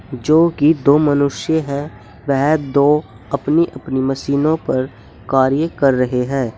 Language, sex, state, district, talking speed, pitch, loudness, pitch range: Hindi, male, Uttar Pradesh, Saharanpur, 135 wpm, 140 Hz, -16 LUFS, 130-150 Hz